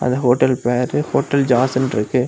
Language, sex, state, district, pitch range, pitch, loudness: Tamil, male, Tamil Nadu, Kanyakumari, 125-130 Hz, 125 Hz, -17 LUFS